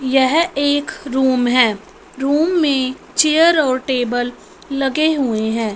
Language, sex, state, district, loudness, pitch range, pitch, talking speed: Hindi, female, Punjab, Fazilka, -16 LUFS, 250-310 Hz, 270 Hz, 125 wpm